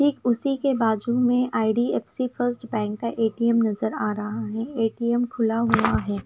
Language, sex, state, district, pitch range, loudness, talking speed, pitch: Hindi, female, Himachal Pradesh, Shimla, 220-245 Hz, -24 LUFS, 165 wpm, 230 Hz